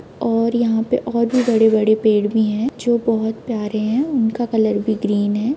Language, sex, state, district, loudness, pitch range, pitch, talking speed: Hindi, female, Bihar, Gopalganj, -18 LUFS, 215-235 Hz, 225 Hz, 195 wpm